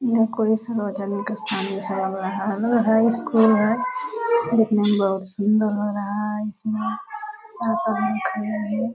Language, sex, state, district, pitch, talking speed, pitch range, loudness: Hindi, female, Bihar, Purnia, 215 Hz, 175 wpm, 205-230 Hz, -21 LUFS